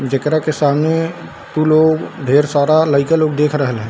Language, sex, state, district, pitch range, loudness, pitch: Hindi, male, Bihar, Darbhanga, 140-155 Hz, -15 LUFS, 150 Hz